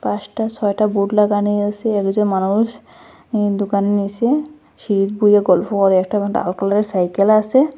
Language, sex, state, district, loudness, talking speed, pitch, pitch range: Bengali, female, Assam, Hailakandi, -17 LUFS, 155 wpm, 205 Hz, 200-215 Hz